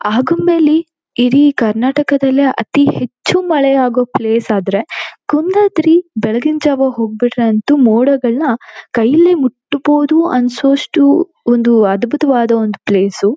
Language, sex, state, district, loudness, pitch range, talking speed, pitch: Kannada, female, Karnataka, Shimoga, -12 LUFS, 235-300 Hz, 100 wpm, 270 Hz